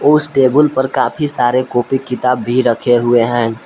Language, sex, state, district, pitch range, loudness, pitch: Hindi, male, Jharkhand, Palamu, 120-135 Hz, -14 LUFS, 125 Hz